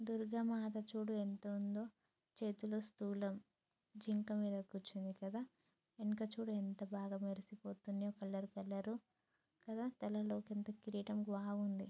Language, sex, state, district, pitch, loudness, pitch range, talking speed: Telugu, female, Telangana, Nalgonda, 210 Hz, -45 LUFS, 200-215 Hz, 110 wpm